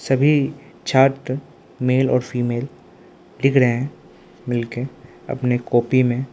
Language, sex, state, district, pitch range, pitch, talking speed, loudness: Hindi, male, Arunachal Pradesh, Lower Dibang Valley, 120-135 Hz, 125 Hz, 125 wpm, -20 LUFS